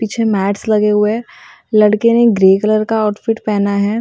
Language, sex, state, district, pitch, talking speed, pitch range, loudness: Hindi, female, Maharashtra, Mumbai Suburban, 215 Hz, 195 wpm, 210-225 Hz, -13 LUFS